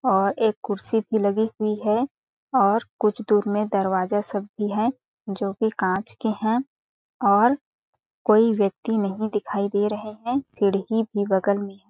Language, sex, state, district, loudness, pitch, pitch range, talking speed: Hindi, female, Chhattisgarh, Balrampur, -23 LUFS, 210 Hz, 200-225 Hz, 165 wpm